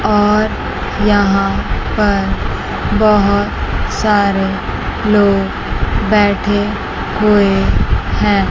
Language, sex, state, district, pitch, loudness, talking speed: Hindi, male, Chandigarh, Chandigarh, 200 Hz, -14 LUFS, 65 wpm